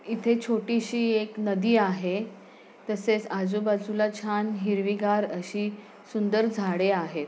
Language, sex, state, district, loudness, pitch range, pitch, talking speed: Marathi, female, Maharashtra, Pune, -27 LUFS, 200-220 Hz, 210 Hz, 115 wpm